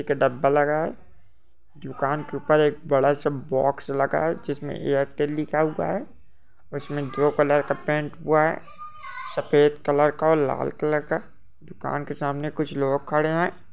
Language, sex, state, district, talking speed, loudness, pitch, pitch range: Hindi, male, Bihar, Bhagalpur, 140 wpm, -24 LUFS, 145 Hz, 140-155 Hz